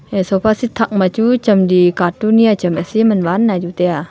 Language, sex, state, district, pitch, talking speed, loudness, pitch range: Wancho, female, Arunachal Pradesh, Longding, 195 Hz, 190 wpm, -14 LUFS, 180-225 Hz